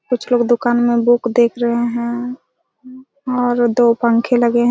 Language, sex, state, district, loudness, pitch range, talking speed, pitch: Hindi, female, Chhattisgarh, Raigarh, -16 LUFS, 235-245 Hz, 165 wpm, 240 Hz